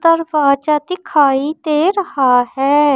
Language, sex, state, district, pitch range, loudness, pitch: Hindi, female, Madhya Pradesh, Umaria, 275-330 Hz, -15 LUFS, 300 Hz